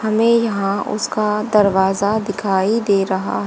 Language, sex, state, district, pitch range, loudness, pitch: Hindi, female, Haryana, Charkhi Dadri, 195-215 Hz, -17 LUFS, 205 Hz